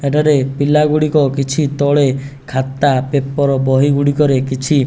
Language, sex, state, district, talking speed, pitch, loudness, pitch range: Odia, male, Odisha, Nuapada, 150 wpm, 140 Hz, -14 LUFS, 135-145 Hz